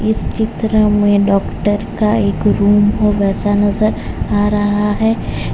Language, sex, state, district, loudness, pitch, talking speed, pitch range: Hindi, male, Gujarat, Valsad, -14 LUFS, 205 Hz, 140 wpm, 205-215 Hz